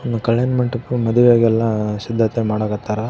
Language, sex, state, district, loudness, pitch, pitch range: Kannada, male, Karnataka, Raichur, -17 LUFS, 115 Hz, 110-120 Hz